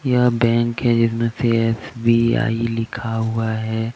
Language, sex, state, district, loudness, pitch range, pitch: Hindi, male, Jharkhand, Deoghar, -19 LUFS, 115-120 Hz, 115 Hz